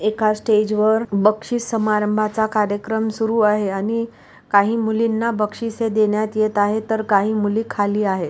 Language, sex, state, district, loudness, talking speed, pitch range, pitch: Marathi, female, Maharashtra, Pune, -19 LUFS, 145 wpm, 210-225 Hz, 215 Hz